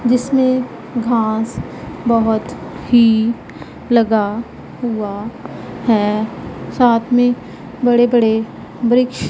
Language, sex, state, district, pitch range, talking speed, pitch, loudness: Hindi, female, Punjab, Pathankot, 220-245 Hz, 75 wpm, 235 Hz, -16 LUFS